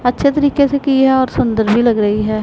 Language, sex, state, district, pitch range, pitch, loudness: Hindi, female, Punjab, Pathankot, 220-280 Hz, 250 Hz, -14 LUFS